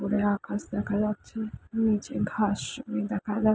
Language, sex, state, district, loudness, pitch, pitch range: Bengali, female, West Bengal, Jalpaiguri, -29 LUFS, 210 Hz, 205-220 Hz